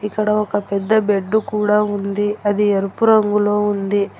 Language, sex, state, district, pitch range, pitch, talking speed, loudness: Telugu, female, Telangana, Hyderabad, 205-210 Hz, 210 Hz, 145 wpm, -17 LUFS